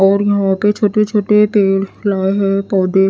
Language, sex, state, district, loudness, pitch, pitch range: Hindi, female, Odisha, Nuapada, -14 LUFS, 200 Hz, 195-210 Hz